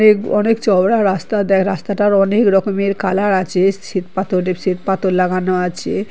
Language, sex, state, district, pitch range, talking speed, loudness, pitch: Bengali, male, West Bengal, Kolkata, 185-205 Hz, 165 wpm, -16 LUFS, 195 Hz